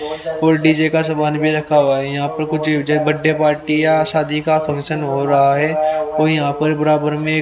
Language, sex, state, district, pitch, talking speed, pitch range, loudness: Hindi, male, Haryana, Rohtak, 155 Hz, 210 wpm, 150-155 Hz, -16 LUFS